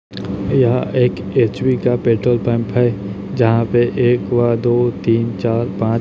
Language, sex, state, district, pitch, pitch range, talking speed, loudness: Hindi, male, Chhattisgarh, Raipur, 120 Hz, 115-120 Hz, 160 wpm, -16 LUFS